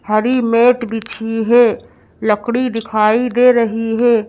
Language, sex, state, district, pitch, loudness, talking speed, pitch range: Hindi, female, Madhya Pradesh, Bhopal, 230 Hz, -14 LUFS, 125 wpm, 220-240 Hz